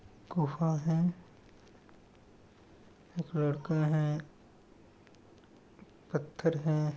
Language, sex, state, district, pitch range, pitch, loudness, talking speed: Hindi, male, Jharkhand, Jamtara, 110-165 Hz, 155 Hz, -33 LUFS, 60 wpm